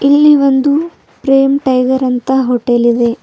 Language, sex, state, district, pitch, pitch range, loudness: Kannada, female, Karnataka, Bidar, 265 Hz, 245-280 Hz, -11 LUFS